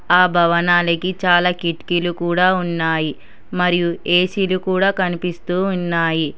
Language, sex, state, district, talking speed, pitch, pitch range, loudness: Telugu, male, Telangana, Hyderabad, 105 wpm, 175 Hz, 170-185 Hz, -17 LUFS